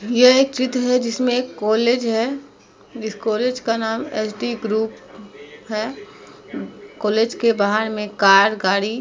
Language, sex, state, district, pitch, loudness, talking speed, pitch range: Hindi, female, Uttar Pradesh, Muzaffarnagar, 225 Hz, -19 LUFS, 145 wpm, 215-245 Hz